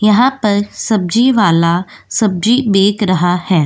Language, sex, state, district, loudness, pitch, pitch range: Hindi, female, Goa, North and South Goa, -13 LUFS, 205 Hz, 180-220 Hz